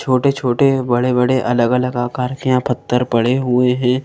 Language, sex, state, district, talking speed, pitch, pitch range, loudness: Hindi, female, Madhya Pradesh, Bhopal, 150 wpm, 125 Hz, 125-130 Hz, -16 LUFS